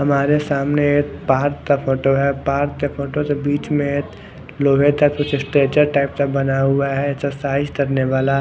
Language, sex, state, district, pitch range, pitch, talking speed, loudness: Hindi, male, Odisha, Khordha, 140-145 Hz, 140 Hz, 185 wpm, -18 LUFS